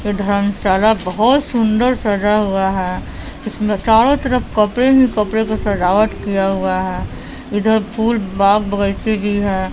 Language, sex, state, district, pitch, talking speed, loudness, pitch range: Hindi, female, Bihar, West Champaran, 210 Hz, 150 wpm, -16 LUFS, 200-220 Hz